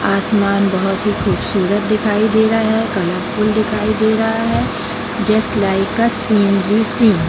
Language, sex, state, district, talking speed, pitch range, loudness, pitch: Hindi, female, Bihar, Jamui, 155 wpm, 200-220 Hz, -15 LUFS, 215 Hz